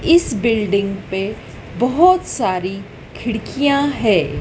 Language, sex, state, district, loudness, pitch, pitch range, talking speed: Hindi, female, Madhya Pradesh, Dhar, -18 LUFS, 220 Hz, 195-280 Hz, 95 wpm